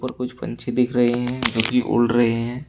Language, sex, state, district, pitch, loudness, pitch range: Hindi, male, Uttar Pradesh, Shamli, 120 Hz, -21 LUFS, 120-125 Hz